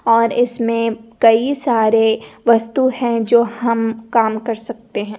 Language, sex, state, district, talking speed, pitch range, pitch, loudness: Hindi, female, Rajasthan, Nagaur, 140 wpm, 225-235 Hz, 230 Hz, -16 LUFS